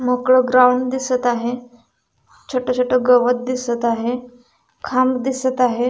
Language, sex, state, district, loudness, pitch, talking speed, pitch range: Marathi, female, Maharashtra, Dhule, -18 LUFS, 250 Hz, 120 wpm, 245-255 Hz